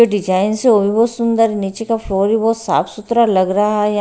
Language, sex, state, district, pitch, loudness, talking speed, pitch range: Hindi, female, Haryana, Rohtak, 215 Hz, -15 LUFS, 285 wpm, 200-230 Hz